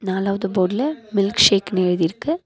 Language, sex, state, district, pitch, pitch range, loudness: Tamil, female, Tamil Nadu, Nilgiris, 195 Hz, 190-215 Hz, -19 LUFS